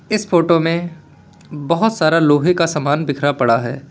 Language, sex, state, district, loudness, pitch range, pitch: Hindi, male, Uttar Pradesh, Lalitpur, -16 LUFS, 145-170 Hz, 160 Hz